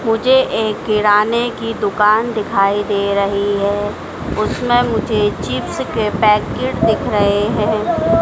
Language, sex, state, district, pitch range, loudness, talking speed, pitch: Hindi, female, Madhya Pradesh, Dhar, 205-225 Hz, -16 LUFS, 125 wpm, 210 Hz